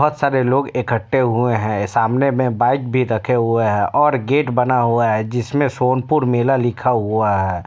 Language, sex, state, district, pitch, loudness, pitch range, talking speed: Hindi, male, Bihar, Kishanganj, 125 Hz, -17 LUFS, 110-130 Hz, 185 wpm